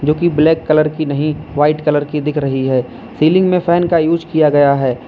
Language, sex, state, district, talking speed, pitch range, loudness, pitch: Hindi, male, Uttar Pradesh, Lalitpur, 225 wpm, 145-160 Hz, -14 LUFS, 150 Hz